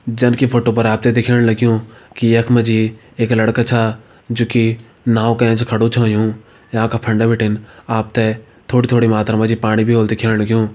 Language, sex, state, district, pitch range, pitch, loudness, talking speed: Hindi, male, Uttarakhand, Uttarkashi, 110-120 Hz, 115 Hz, -15 LUFS, 175 wpm